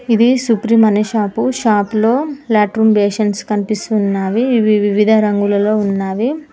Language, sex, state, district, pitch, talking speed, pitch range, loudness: Telugu, female, Telangana, Mahabubabad, 215 Hz, 90 wpm, 205-230 Hz, -14 LUFS